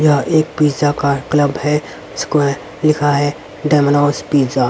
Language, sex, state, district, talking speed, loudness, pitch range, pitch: Hindi, male, Haryana, Rohtak, 155 wpm, -15 LUFS, 140-150 Hz, 145 Hz